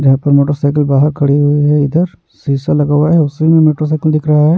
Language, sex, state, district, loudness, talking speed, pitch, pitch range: Hindi, male, Odisha, Nuapada, -12 LUFS, 235 wpm, 150 Hz, 145-155 Hz